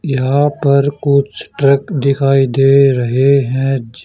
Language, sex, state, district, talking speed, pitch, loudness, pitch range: Hindi, male, Haryana, Charkhi Dadri, 135 wpm, 140 Hz, -13 LUFS, 135-140 Hz